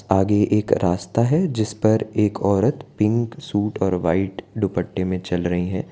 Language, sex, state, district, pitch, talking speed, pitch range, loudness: Hindi, male, Gujarat, Valsad, 105 Hz, 170 wpm, 95-110 Hz, -21 LUFS